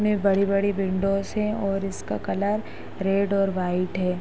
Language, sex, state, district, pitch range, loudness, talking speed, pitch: Hindi, female, Uttar Pradesh, Hamirpur, 190-200 Hz, -25 LUFS, 170 wpm, 195 Hz